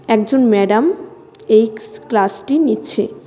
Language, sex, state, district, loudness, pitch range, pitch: Bengali, female, West Bengal, Cooch Behar, -15 LUFS, 215-310 Hz, 225 Hz